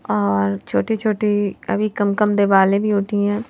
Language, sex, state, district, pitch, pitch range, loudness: Hindi, female, Madhya Pradesh, Bhopal, 205 Hz, 195-210 Hz, -18 LUFS